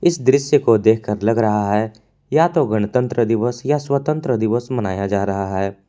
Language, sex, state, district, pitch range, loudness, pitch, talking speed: Hindi, male, Jharkhand, Palamu, 105-130 Hz, -18 LUFS, 115 Hz, 185 wpm